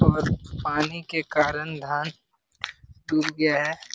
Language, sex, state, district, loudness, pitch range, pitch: Hindi, male, Jharkhand, Jamtara, -26 LUFS, 150-155 Hz, 150 Hz